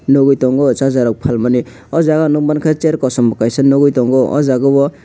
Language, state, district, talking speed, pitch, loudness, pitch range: Kokborok, Tripura, West Tripura, 225 wpm, 135 Hz, -13 LUFS, 125-145 Hz